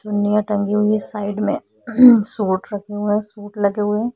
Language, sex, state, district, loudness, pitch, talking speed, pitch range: Hindi, female, Chhattisgarh, Korba, -18 LUFS, 210 Hz, 160 wpm, 205-215 Hz